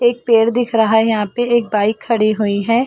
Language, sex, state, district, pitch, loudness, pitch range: Hindi, female, Chhattisgarh, Bilaspur, 225 Hz, -15 LUFS, 215-240 Hz